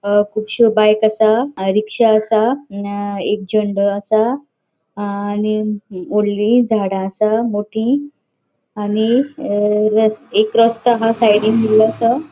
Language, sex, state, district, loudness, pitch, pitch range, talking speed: Konkani, female, Goa, North and South Goa, -16 LUFS, 215 Hz, 205-230 Hz, 100 wpm